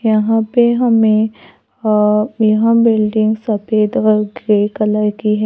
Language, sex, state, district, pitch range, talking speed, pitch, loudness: Hindi, female, Maharashtra, Gondia, 210-225 Hz, 130 wpm, 215 Hz, -14 LUFS